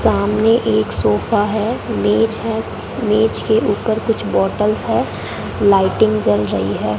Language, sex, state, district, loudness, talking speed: Hindi, female, Rajasthan, Bikaner, -17 LUFS, 135 wpm